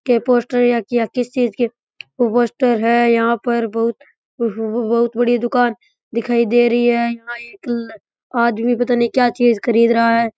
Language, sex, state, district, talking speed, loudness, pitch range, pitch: Rajasthani, male, Rajasthan, Churu, 145 wpm, -17 LUFS, 235-245 Hz, 235 Hz